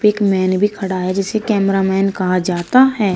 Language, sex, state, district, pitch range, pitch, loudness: Hindi, female, Uttar Pradesh, Shamli, 185-210 Hz, 195 Hz, -16 LUFS